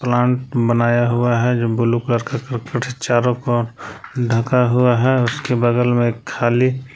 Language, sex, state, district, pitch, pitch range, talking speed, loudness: Hindi, male, Jharkhand, Palamu, 120 Hz, 120-125 Hz, 145 wpm, -18 LUFS